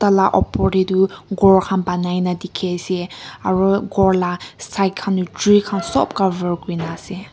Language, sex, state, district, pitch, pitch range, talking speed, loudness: Nagamese, female, Nagaland, Kohima, 190 Hz, 180-195 Hz, 165 wpm, -18 LUFS